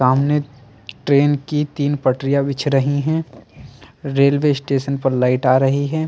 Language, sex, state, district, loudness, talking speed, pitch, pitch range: Hindi, male, Delhi, New Delhi, -18 LUFS, 150 wpm, 140 Hz, 135-145 Hz